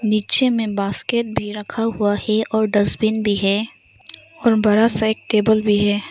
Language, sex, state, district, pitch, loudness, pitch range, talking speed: Hindi, female, Arunachal Pradesh, Lower Dibang Valley, 215 Hz, -18 LUFS, 205-225 Hz, 175 wpm